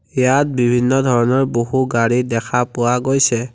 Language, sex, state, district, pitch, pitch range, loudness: Assamese, male, Assam, Kamrup Metropolitan, 125 Hz, 120-130 Hz, -16 LUFS